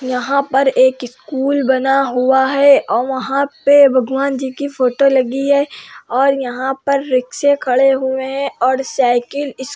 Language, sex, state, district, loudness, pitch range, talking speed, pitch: Hindi, female, Uttar Pradesh, Hamirpur, -15 LUFS, 255-280 Hz, 165 wpm, 265 Hz